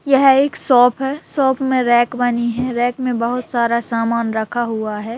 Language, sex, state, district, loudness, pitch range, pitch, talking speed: Hindi, female, Chhattisgarh, Raigarh, -17 LUFS, 235-265 Hz, 245 Hz, 195 wpm